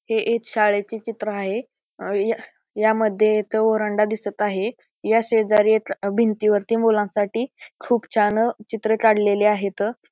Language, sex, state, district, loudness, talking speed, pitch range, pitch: Marathi, male, Maharashtra, Pune, -21 LUFS, 125 wpm, 210-225 Hz, 215 Hz